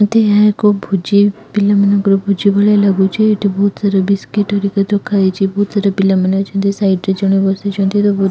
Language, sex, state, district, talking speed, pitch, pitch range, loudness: Odia, female, Odisha, Khordha, 180 wpm, 200 Hz, 195-205 Hz, -13 LUFS